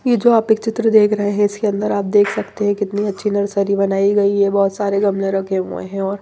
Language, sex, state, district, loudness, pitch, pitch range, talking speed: Hindi, female, Maharashtra, Mumbai Suburban, -17 LUFS, 205 Hz, 200-210 Hz, 260 wpm